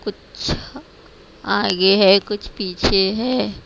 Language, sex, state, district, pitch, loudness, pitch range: Hindi, female, Haryana, Rohtak, 195 Hz, -18 LUFS, 190-210 Hz